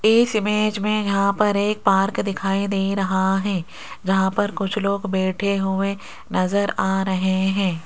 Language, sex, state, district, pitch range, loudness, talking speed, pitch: Hindi, female, Rajasthan, Jaipur, 190-205 Hz, -21 LUFS, 160 wpm, 195 Hz